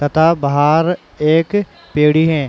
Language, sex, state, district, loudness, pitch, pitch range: Hindi, male, Uttar Pradesh, Muzaffarnagar, -15 LUFS, 155 Hz, 150-165 Hz